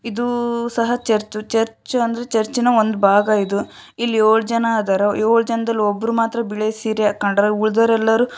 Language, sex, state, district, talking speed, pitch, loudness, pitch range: Kannada, female, Karnataka, Shimoga, 155 wpm, 225 Hz, -18 LUFS, 215-230 Hz